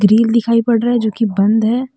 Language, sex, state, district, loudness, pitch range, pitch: Hindi, female, Jharkhand, Deoghar, -14 LUFS, 220-235 Hz, 230 Hz